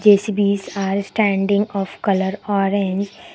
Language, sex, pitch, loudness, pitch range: English, female, 200 Hz, -19 LUFS, 195-205 Hz